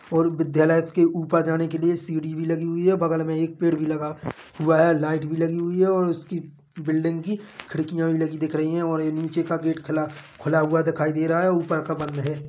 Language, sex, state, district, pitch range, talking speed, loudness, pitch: Hindi, male, Chhattisgarh, Bilaspur, 155-170 Hz, 240 wpm, -23 LUFS, 160 Hz